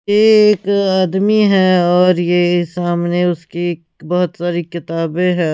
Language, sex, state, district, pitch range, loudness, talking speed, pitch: Hindi, female, Punjab, Pathankot, 175-190 Hz, -14 LUFS, 130 wpm, 175 Hz